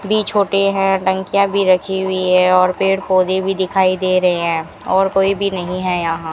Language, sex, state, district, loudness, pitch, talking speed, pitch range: Hindi, female, Rajasthan, Bikaner, -16 LUFS, 190 Hz, 210 wpm, 185-195 Hz